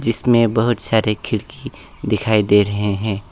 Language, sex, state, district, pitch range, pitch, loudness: Hindi, male, West Bengal, Alipurduar, 105-115 Hz, 110 Hz, -17 LUFS